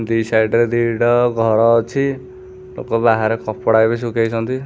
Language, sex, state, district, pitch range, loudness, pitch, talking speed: Odia, male, Odisha, Khordha, 115-120 Hz, -16 LUFS, 115 Hz, 140 wpm